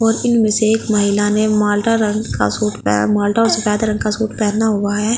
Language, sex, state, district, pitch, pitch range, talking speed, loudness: Hindi, female, Delhi, New Delhi, 215 Hz, 205-220 Hz, 245 wpm, -16 LUFS